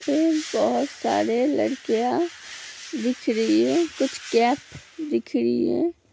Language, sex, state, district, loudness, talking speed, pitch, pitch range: Hindi, female, Uttar Pradesh, Hamirpur, -23 LUFS, 100 wpm, 285 Hz, 240-325 Hz